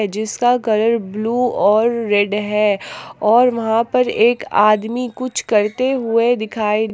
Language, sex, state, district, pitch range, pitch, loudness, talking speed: Hindi, female, Jharkhand, Palamu, 210-245 Hz, 225 Hz, -17 LUFS, 130 wpm